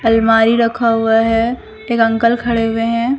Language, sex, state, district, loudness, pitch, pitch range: Hindi, female, Madhya Pradesh, Umaria, -14 LUFS, 230 Hz, 225-235 Hz